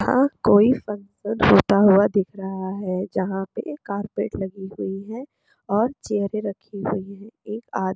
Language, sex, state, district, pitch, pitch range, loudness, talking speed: Hindi, female, Bihar, Sitamarhi, 200 Hz, 195-215 Hz, -22 LUFS, 160 wpm